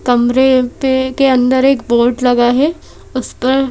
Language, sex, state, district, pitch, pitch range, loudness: Hindi, female, Madhya Pradesh, Bhopal, 255 Hz, 245-265 Hz, -13 LUFS